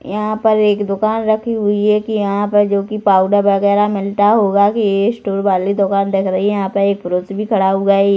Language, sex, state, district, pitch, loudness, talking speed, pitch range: Hindi, female, Chhattisgarh, Rajnandgaon, 200 Hz, -15 LUFS, 245 wpm, 195-210 Hz